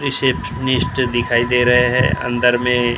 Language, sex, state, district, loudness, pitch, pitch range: Hindi, male, Maharashtra, Gondia, -16 LUFS, 125 Hz, 120-125 Hz